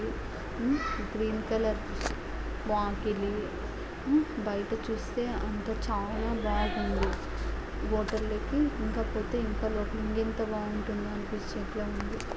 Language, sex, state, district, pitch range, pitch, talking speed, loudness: Telugu, female, Andhra Pradesh, Anantapur, 210-225 Hz, 220 Hz, 90 wpm, -32 LUFS